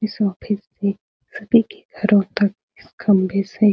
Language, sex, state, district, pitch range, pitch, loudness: Hindi, female, Bihar, Supaul, 200-215 Hz, 205 Hz, -20 LUFS